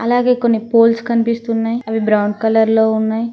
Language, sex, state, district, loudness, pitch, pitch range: Telugu, female, Telangana, Mahabubabad, -15 LUFS, 230 Hz, 220-235 Hz